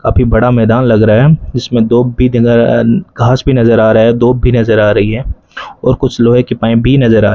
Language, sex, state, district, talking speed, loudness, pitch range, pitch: Hindi, male, Rajasthan, Bikaner, 255 wpm, -9 LUFS, 110-125 Hz, 120 Hz